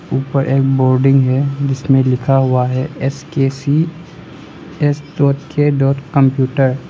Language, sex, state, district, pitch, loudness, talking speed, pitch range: Hindi, male, Arunachal Pradesh, Lower Dibang Valley, 135 Hz, -15 LUFS, 150 wpm, 135-145 Hz